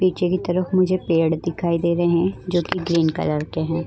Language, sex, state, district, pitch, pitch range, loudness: Hindi, female, Goa, North and South Goa, 170 Hz, 165-180 Hz, -21 LUFS